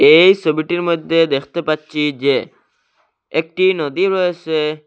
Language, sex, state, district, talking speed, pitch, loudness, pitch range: Bengali, male, Assam, Hailakandi, 110 wpm, 160 Hz, -16 LUFS, 155-175 Hz